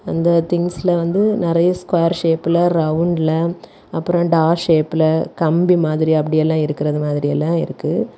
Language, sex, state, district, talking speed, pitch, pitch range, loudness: Tamil, female, Tamil Nadu, Kanyakumari, 130 wpm, 165 Hz, 155-175 Hz, -17 LUFS